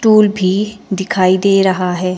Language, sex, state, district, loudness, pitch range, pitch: Hindi, female, Himachal Pradesh, Shimla, -14 LUFS, 185-210 Hz, 190 Hz